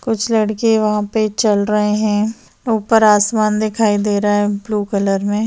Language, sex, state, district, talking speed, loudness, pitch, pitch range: Hindi, female, Jharkhand, Sahebganj, 185 wpm, -16 LUFS, 210 Hz, 205-220 Hz